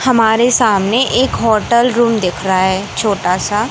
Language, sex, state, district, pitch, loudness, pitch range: Hindi, male, Madhya Pradesh, Katni, 220 Hz, -13 LUFS, 195-240 Hz